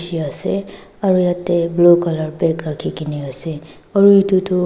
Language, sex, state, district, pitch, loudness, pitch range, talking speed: Nagamese, female, Nagaland, Dimapur, 170 Hz, -17 LUFS, 155-185 Hz, 155 wpm